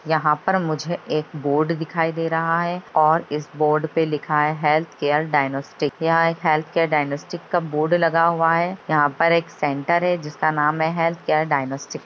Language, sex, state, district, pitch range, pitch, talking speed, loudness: Hindi, female, Bihar, Begusarai, 150-165 Hz, 155 Hz, 200 wpm, -21 LUFS